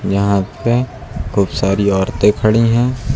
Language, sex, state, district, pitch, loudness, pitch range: Hindi, male, Uttar Pradesh, Lucknow, 105 Hz, -15 LUFS, 100-120 Hz